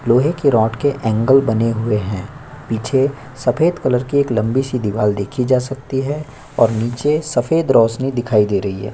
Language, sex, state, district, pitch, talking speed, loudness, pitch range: Hindi, male, Chhattisgarh, Korba, 125 Hz, 190 wpm, -17 LUFS, 110-135 Hz